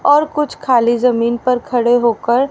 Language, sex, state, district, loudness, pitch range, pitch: Hindi, female, Haryana, Rohtak, -15 LUFS, 235-275 Hz, 245 Hz